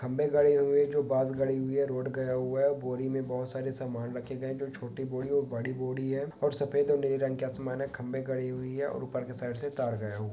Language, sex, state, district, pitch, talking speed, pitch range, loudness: Hindi, male, Bihar, Sitamarhi, 130 Hz, 285 wpm, 130-140 Hz, -31 LUFS